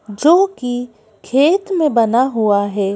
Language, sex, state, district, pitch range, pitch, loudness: Hindi, female, Madhya Pradesh, Bhopal, 215-305 Hz, 245 Hz, -15 LUFS